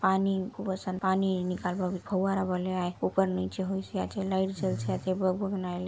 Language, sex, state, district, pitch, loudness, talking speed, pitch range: Hindi, female, Chhattisgarh, Bastar, 190 Hz, -30 LUFS, 195 wpm, 185-190 Hz